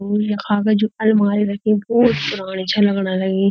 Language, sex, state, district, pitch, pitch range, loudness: Garhwali, female, Uttarakhand, Uttarkashi, 205 Hz, 195-215 Hz, -18 LUFS